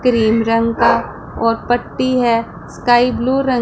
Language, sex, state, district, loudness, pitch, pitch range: Hindi, female, Punjab, Pathankot, -15 LUFS, 235 Hz, 230-250 Hz